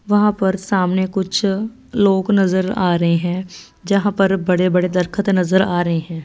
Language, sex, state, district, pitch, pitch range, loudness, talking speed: Hindi, female, Punjab, Fazilka, 190 Hz, 180-200 Hz, -17 LUFS, 175 wpm